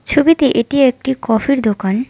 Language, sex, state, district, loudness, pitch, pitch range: Bengali, female, West Bengal, Alipurduar, -14 LUFS, 265 Hz, 225-280 Hz